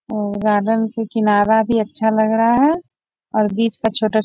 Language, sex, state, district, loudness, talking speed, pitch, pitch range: Hindi, female, Bihar, Bhagalpur, -17 LUFS, 195 wpm, 220 Hz, 215-225 Hz